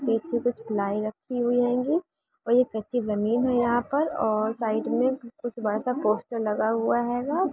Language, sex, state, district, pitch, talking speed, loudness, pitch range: Hindi, female, Uttar Pradesh, Varanasi, 240 Hz, 165 wpm, -26 LUFS, 220-250 Hz